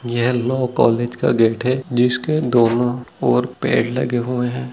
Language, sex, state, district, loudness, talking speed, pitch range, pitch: Hindi, male, Chhattisgarh, Bilaspur, -18 LUFS, 165 wpm, 120-125 Hz, 125 Hz